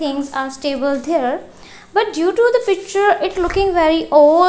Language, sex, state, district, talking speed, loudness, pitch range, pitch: English, female, Punjab, Kapurthala, 175 wpm, -16 LUFS, 290-390 Hz, 330 Hz